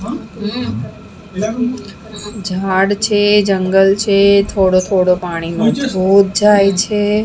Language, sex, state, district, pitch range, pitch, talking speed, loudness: Gujarati, female, Maharashtra, Mumbai Suburban, 195-210 Hz, 200 Hz, 85 wpm, -14 LUFS